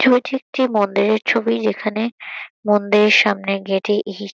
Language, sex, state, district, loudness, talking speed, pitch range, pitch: Bengali, female, West Bengal, Kolkata, -18 LUFS, 150 wpm, 205-230 Hz, 210 Hz